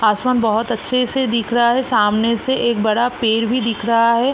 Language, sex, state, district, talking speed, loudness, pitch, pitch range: Hindi, female, Bihar, East Champaran, 220 wpm, -17 LUFS, 235 Hz, 225-250 Hz